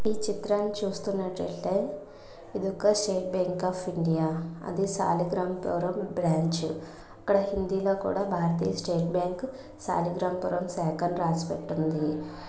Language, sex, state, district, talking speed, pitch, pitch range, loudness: Telugu, female, Andhra Pradesh, Visakhapatnam, 120 wpm, 180 Hz, 165-195 Hz, -29 LUFS